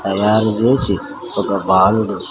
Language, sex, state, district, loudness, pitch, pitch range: Telugu, male, Andhra Pradesh, Sri Satya Sai, -16 LUFS, 105 Hz, 100-110 Hz